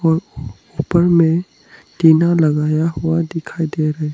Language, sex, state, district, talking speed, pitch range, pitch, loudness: Hindi, male, Arunachal Pradesh, Lower Dibang Valley, 100 wpm, 155-170 Hz, 160 Hz, -16 LUFS